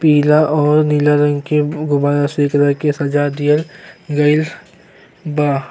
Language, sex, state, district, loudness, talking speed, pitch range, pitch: Bhojpuri, male, Uttar Pradesh, Gorakhpur, -15 LUFS, 135 wpm, 145-155 Hz, 150 Hz